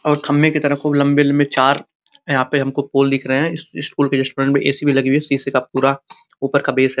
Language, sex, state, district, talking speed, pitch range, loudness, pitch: Hindi, male, Uttar Pradesh, Gorakhpur, 290 wpm, 135-145 Hz, -17 LUFS, 140 Hz